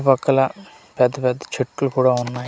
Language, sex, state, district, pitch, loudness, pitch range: Telugu, male, Andhra Pradesh, Manyam, 130 Hz, -20 LUFS, 125-140 Hz